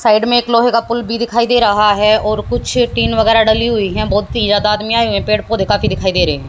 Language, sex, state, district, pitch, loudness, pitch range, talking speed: Hindi, female, Haryana, Jhajjar, 225 Hz, -13 LUFS, 210-235 Hz, 295 wpm